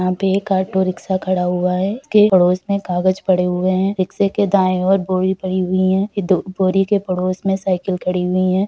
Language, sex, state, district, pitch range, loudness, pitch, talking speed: Hindi, male, Uttar Pradesh, Muzaffarnagar, 185-195 Hz, -17 LUFS, 185 Hz, 215 wpm